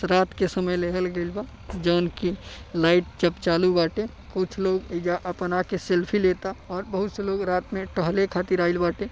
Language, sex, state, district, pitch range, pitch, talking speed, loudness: Bhojpuri, male, Uttar Pradesh, Deoria, 175-190 Hz, 180 Hz, 190 wpm, -25 LUFS